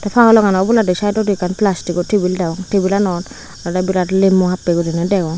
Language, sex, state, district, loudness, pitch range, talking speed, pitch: Chakma, female, Tripura, Unakoti, -15 LUFS, 180-205 Hz, 170 wpm, 190 Hz